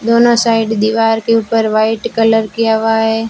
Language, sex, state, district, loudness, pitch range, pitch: Hindi, female, Rajasthan, Bikaner, -13 LUFS, 225-230 Hz, 225 Hz